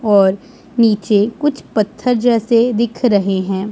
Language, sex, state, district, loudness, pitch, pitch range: Hindi, male, Punjab, Pathankot, -15 LUFS, 225 Hz, 205-240 Hz